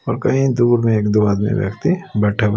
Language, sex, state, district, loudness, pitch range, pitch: Hindi, male, Delhi, New Delhi, -17 LUFS, 105-125 Hz, 110 Hz